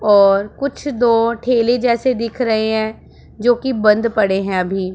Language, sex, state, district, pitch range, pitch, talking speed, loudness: Hindi, female, Punjab, Pathankot, 210-245 Hz, 230 Hz, 170 wpm, -16 LUFS